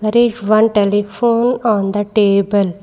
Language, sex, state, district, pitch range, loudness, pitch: English, female, Karnataka, Bangalore, 200-230 Hz, -14 LUFS, 210 Hz